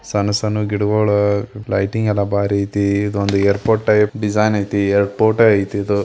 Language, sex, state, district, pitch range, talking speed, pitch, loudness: Kannada, male, Karnataka, Belgaum, 100-105 Hz, 150 wpm, 105 Hz, -17 LUFS